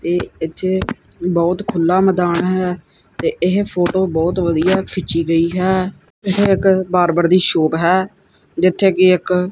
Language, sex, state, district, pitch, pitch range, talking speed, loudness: Punjabi, male, Punjab, Kapurthala, 180 Hz, 170-185 Hz, 145 wpm, -16 LUFS